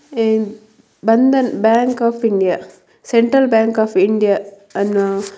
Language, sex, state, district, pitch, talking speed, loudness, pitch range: Kannada, female, Karnataka, Mysore, 220 Hz, 110 wpm, -15 LUFS, 200-235 Hz